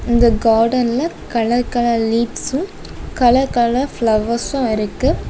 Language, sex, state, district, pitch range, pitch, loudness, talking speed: Tamil, female, Tamil Nadu, Kanyakumari, 230-250 Hz, 235 Hz, -17 LUFS, 100 wpm